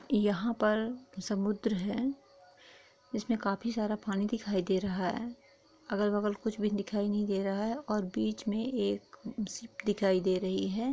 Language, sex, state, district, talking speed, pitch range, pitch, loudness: Hindi, female, Jharkhand, Sahebganj, 165 wpm, 195-230 Hz, 210 Hz, -33 LUFS